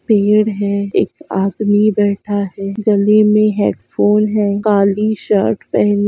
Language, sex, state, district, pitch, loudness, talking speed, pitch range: Hindi, female, Andhra Pradesh, Chittoor, 205 Hz, -14 LUFS, 140 wpm, 200-215 Hz